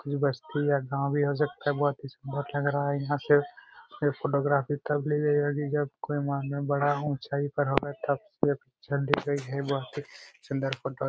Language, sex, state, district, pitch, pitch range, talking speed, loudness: Hindi, male, Jharkhand, Jamtara, 145 Hz, 140-145 Hz, 180 wpm, -29 LUFS